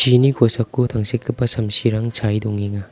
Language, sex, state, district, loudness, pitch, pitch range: Garo, male, Meghalaya, South Garo Hills, -18 LUFS, 115 Hz, 110-125 Hz